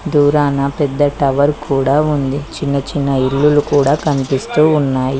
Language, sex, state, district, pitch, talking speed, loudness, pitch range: Telugu, female, Telangana, Mahabubabad, 145 Hz, 115 wpm, -15 LUFS, 135-150 Hz